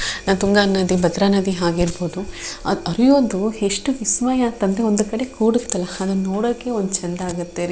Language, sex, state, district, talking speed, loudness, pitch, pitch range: Kannada, female, Karnataka, Shimoga, 165 wpm, -19 LUFS, 200 Hz, 185-230 Hz